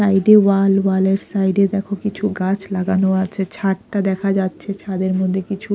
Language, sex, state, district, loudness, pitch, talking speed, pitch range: Bengali, female, Odisha, Khordha, -18 LUFS, 195 Hz, 190 wpm, 190-200 Hz